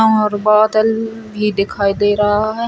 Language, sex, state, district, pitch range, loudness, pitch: Hindi, female, Chhattisgarh, Rajnandgaon, 205-220 Hz, -15 LUFS, 215 Hz